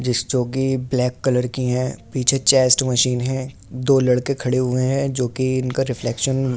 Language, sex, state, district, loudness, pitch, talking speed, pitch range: Hindi, male, Delhi, New Delhi, -19 LUFS, 130 Hz, 180 wpm, 125-130 Hz